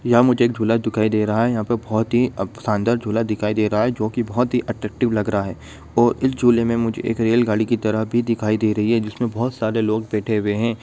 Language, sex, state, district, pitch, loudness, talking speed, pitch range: Hindi, male, Bihar, Begusarai, 115 Hz, -20 LUFS, 265 wpm, 110-120 Hz